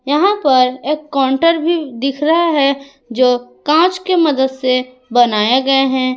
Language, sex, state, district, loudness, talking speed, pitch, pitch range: Hindi, female, Jharkhand, Ranchi, -14 LUFS, 155 wpm, 275 Hz, 255-310 Hz